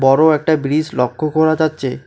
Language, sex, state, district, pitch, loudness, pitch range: Bengali, male, West Bengal, Alipurduar, 155 Hz, -15 LUFS, 135-155 Hz